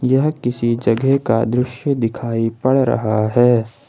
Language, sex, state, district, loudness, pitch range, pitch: Hindi, male, Jharkhand, Ranchi, -17 LUFS, 115-130 Hz, 120 Hz